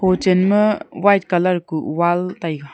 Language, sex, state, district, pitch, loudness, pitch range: Wancho, female, Arunachal Pradesh, Longding, 180 Hz, -18 LUFS, 170-190 Hz